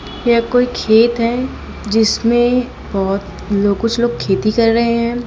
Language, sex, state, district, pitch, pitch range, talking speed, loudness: Hindi, female, Chhattisgarh, Raipur, 230 Hz, 210-240 Hz, 150 wpm, -15 LUFS